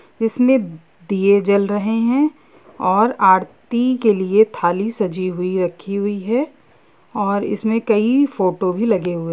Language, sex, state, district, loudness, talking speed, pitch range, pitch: Hindi, female, Jharkhand, Sahebganj, -18 LUFS, 150 wpm, 190-230 Hz, 205 Hz